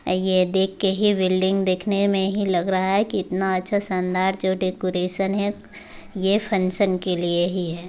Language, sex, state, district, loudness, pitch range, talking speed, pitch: Hindi, female, Bihar, Muzaffarpur, -20 LUFS, 185-195 Hz, 180 wpm, 190 Hz